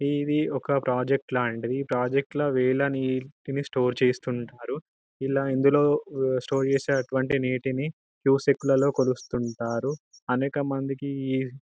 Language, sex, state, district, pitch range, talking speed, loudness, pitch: Telugu, male, Telangana, Karimnagar, 130-140 Hz, 120 wpm, -26 LUFS, 135 Hz